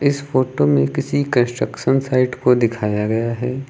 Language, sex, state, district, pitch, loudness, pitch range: Hindi, male, Uttar Pradesh, Lucknow, 125 Hz, -18 LUFS, 110-130 Hz